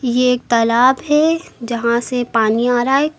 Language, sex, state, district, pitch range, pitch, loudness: Hindi, female, Uttar Pradesh, Lucknow, 235-265 Hz, 245 Hz, -16 LUFS